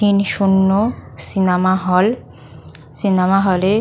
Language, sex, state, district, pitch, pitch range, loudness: Bengali, female, West Bengal, North 24 Parganas, 195 Hz, 185-200 Hz, -16 LUFS